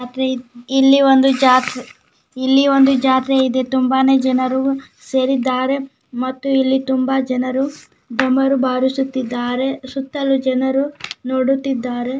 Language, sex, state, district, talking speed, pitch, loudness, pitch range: Kannada, female, Karnataka, Gulbarga, 95 wpm, 265 Hz, -17 LUFS, 255-270 Hz